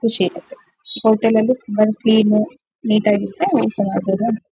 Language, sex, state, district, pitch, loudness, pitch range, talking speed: Kannada, female, Karnataka, Shimoga, 220 Hz, -17 LUFS, 210-235 Hz, 90 wpm